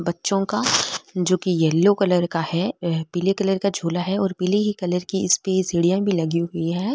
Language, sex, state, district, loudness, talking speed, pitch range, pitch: Marwari, female, Rajasthan, Nagaur, -21 LUFS, 215 wpm, 170-195 Hz, 185 Hz